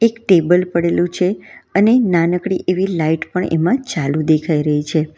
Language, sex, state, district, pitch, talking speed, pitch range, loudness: Gujarati, female, Gujarat, Valsad, 175 Hz, 160 wpm, 160-190 Hz, -16 LUFS